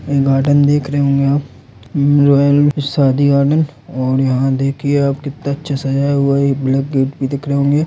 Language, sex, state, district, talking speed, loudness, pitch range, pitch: Angika, male, Bihar, Samastipur, 175 wpm, -15 LUFS, 135-145 Hz, 140 Hz